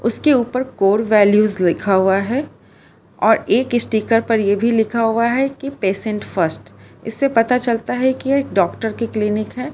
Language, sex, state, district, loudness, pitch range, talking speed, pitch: Hindi, female, Gujarat, Valsad, -17 LUFS, 210-250 Hz, 170 wpm, 225 Hz